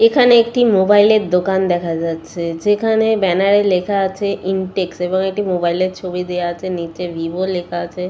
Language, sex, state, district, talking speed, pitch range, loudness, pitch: Bengali, female, West Bengal, Purulia, 180 wpm, 175-200 Hz, -16 LUFS, 185 Hz